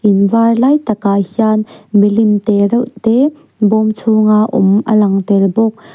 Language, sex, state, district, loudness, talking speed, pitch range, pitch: Mizo, female, Mizoram, Aizawl, -12 LUFS, 170 wpm, 205-225 Hz, 215 Hz